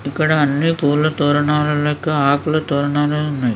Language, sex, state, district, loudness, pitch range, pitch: Telugu, male, Andhra Pradesh, Krishna, -17 LUFS, 145-155 Hz, 150 Hz